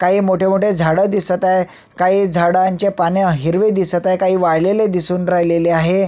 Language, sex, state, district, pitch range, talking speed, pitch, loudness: Marathi, male, Maharashtra, Sindhudurg, 175-195 Hz, 170 wpm, 185 Hz, -15 LUFS